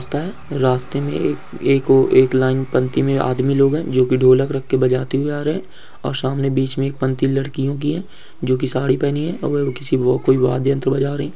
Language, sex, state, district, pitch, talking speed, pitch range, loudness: Hindi, male, West Bengal, Dakshin Dinajpur, 135 Hz, 230 wpm, 130-140 Hz, -18 LUFS